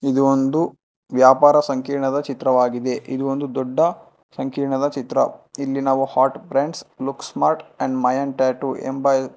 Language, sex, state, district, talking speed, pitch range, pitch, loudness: Kannada, male, Karnataka, Bangalore, 130 wpm, 130-140 Hz, 135 Hz, -20 LUFS